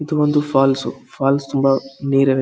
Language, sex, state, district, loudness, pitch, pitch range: Kannada, male, Karnataka, Gulbarga, -18 LUFS, 135 Hz, 135-145 Hz